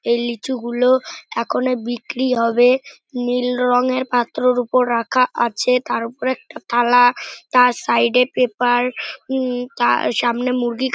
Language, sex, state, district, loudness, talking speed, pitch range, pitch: Bengali, male, West Bengal, North 24 Parganas, -18 LUFS, 130 wpm, 240-255 Hz, 250 Hz